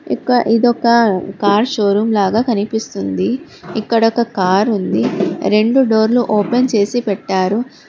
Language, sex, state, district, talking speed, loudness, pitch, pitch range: Telugu, female, Telangana, Hyderabad, 120 wpm, -15 LUFS, 220 Hz, 200-235 Hz